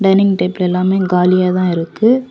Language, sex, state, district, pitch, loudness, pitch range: Tamil, female, Tamil Nadu, Kanyakumari, 185 Hz, -14 LUFS, 180-195 Hz